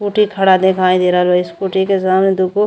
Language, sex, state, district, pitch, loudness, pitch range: Bhojpuri, female, Uttar Pradesh, Gorakhpur, 190 Hz, -14 LUFS, 185-195 Hz